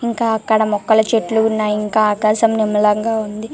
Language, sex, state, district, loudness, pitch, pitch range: Telugu, female, Telangana, Karimnagar, -16 LUFS, 220 Hz, 210-225 Hz